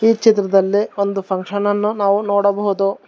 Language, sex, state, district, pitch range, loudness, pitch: Kannada, male, Karnataka, Bangalore, 195-205 Hz, -17 LUFS, 200 Hz